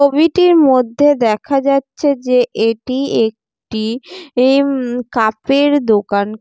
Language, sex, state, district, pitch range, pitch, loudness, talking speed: Bengali, female, West Bengal, Jalpaiguri, 225-285 Hz, 255 Hz, -14 LUFS, 105 wpm